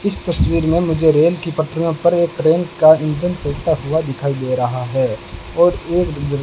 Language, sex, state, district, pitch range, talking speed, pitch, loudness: Hindi, male, Rajasthan, Bikaner, 140-170 Hz, 195 wpm, 160 Hz, -16 LUFS